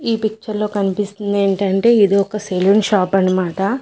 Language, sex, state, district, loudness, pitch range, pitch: Telugu, female, Andhra Pradesh, Manyam, -16 LUFS, 195-210 Hz, 200 Hz